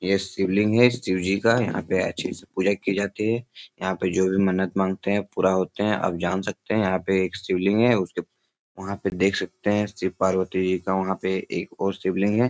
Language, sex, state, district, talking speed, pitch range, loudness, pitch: Hindi, male, Bihar, Supaul, 235 wpm, 95-100 Hz, -24 LUFS, 95 Hz